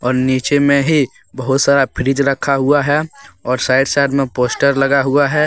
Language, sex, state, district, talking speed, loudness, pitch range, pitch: Hindi, male, Jharkhand, Deoghar, 210 wpm, -15 LUFS, 130-145 Hz, 140 Hz